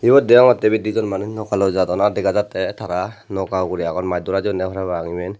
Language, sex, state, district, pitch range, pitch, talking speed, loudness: Chakma, male, Tripura, Dhalai, 90-110 Hz, 95 Hz, 210 wpm, -18 LUFS